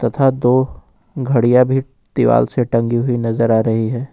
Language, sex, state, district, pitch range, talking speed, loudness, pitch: Hindi, male, Jharkhand, Ranchi, 115-130 Hz, 175 wpm, -16 LUFS, 125 Hz